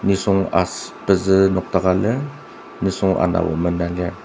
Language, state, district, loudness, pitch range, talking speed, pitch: Ao, Nagaland, Dimapur, -19 LUFS, 90-100 Hz, 125 wpm, 95 Hz